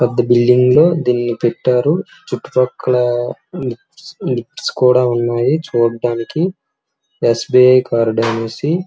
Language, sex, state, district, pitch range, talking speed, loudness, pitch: Telugu, male, Andhra Pradesh, Srikakulam, 120-125 Hz, 100 wpm, -15 LUFS, 125 Hz